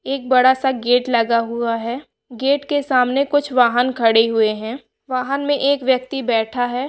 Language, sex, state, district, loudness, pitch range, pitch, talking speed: Hindi, female, Bihar, Bhagalpur, -18 LUFS, 235-275 Hz, 255 Hz, 185 wpm